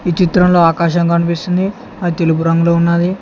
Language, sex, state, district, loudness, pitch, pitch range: Telugu, male, Telangana, Hyderabad, -13 LUFS, 170 Hz, 170-180 Hz